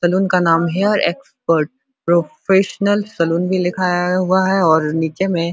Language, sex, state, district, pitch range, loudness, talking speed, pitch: Hindi, male, Bihar, Supaul, 170-195 Hz, -17 LUFS, 160 wpm, 180 Hz